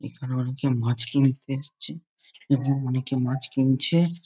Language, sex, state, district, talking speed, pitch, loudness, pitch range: Bengali, male, West Bengal, Jhargram, 125 wpm, 135 Hz, -25 LUFS, 130-140 Hz